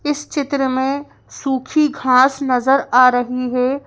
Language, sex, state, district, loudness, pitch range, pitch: Hindi, female, Madhya Pradesh, Bhopal, -17 LUFS, 255-280 Hz, 265 Hz